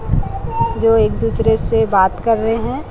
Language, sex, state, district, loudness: Hindi, female, Chhattisgarh, Raipur, -16 LUFS